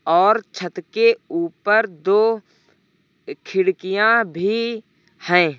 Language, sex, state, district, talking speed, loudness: Hindi, male, Uttar Pradesh, Lucknow, 85 wpm, -19 LUFS